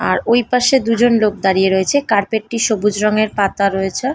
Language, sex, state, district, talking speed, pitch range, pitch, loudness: Bengali, female, West Bengal, Dakshin Dinajpur, 190 wpm, 200-240 Hz, 215 Hz, -15 LUFS